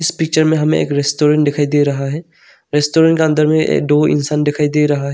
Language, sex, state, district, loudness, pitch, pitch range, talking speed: Hindi, male, Arunachal Pradesh, Longding, -14 LUFS, 150 Hz, 145-155 Hz, 220 wpm